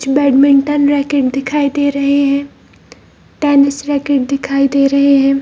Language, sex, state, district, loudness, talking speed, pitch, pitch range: Hindi, female, Bihar, Jamui, -13 LUFS, 145 wpm, 280 Hz, 275-285 Hz